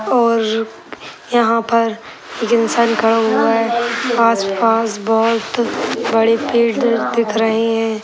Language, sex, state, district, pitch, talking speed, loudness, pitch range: Hindi, female, Uttar Pradesh, Gorakhpur, 230 Hz, 110 wpm, -16 LUFS, 225-235 Hz